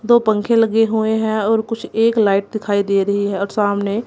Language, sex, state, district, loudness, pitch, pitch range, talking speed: Hindi, female, Punjab, Kapurthala, -17 LUFS, 220 Hz, 200-225 Hz, 220 wpm